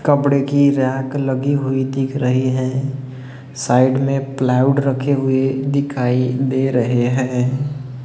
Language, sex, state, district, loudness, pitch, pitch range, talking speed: Hindi, male, Maharashtra, Gondia, -17 LUFS, 135 Hz, 130-135 Hz, 125 wpm